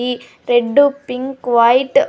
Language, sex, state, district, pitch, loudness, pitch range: Telugu, female, Andhra Pradesh, Sri Satya Sai, 250 Hz, -15 LUFS, 240-280 Hz